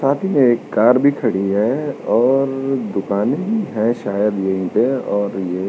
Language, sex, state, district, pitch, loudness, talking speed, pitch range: Hindi, male, Uttarakhand, Tehri Garhwal, 110 Hz, -18 LUFS, 190 wpm, 100-135 Hz